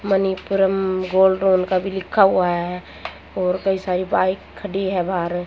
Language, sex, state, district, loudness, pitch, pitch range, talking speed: Hindi, female, Haryana, Jhajjar, -20 LUFS, 190 Hz, 180-195 Hz, 165 wpm